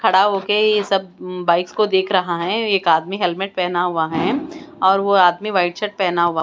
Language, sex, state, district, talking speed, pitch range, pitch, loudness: Hindi, female, Bihar, West Champaran, 215 wpm, 175-205 Hz, 190 Hz, -18 LUFS